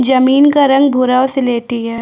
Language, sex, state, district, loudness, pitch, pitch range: Hindi, female, Chhattisgarh, Bastar, -12 LUFS, 260 Hz, 245-270 Hz